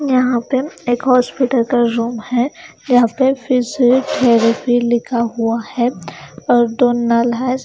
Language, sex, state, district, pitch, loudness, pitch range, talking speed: Hindi, female, Haryana, Charkhi Dadri, 245 Hz, -15 LUFS, 235-255 Hz, 120 wpm